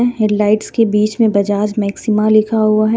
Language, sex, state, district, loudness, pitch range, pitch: Hindi, female, Jharkhand, Deoghar, -14 LUFS, 210-220 Hz, 215 Hz